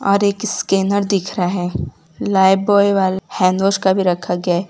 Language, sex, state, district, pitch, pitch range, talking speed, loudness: Hindi, female, Gujarat, Valsad, 190 Hz, 185-200 Hz, 180 wpm, -17 LUFS